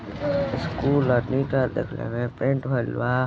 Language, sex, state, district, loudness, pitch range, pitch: Hindi, male, Uttar Pradesh, Gorakhpur, -25 LUFS, 120-135 Hz, 130 Hz